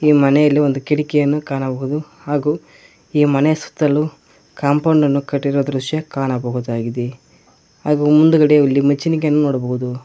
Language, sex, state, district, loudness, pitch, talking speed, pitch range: Kannada, male, Karnataka, Koppal, -17 LUFS, 145 Hz, 110 wpm, 135-150 Hz